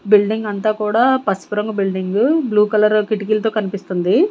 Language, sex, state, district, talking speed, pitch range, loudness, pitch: Telugu, female, Andhra Pradesh, Sri Satya Sai, 125 wpm, 200-220 Hz, -17 LUFS, 210 Hz